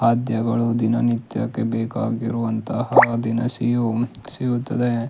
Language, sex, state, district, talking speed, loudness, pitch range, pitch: Kannada, male, Karnataka, Shimoga, 70 wpm, -21 LUFS, 115-120 Hz, 115 Hz